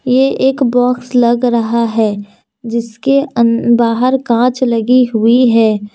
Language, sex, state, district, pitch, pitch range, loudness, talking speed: Hindi, female, Jharkhand, Deoghar, 240 Hz, 230-250 Hz, -12 LUFS, 130 wpm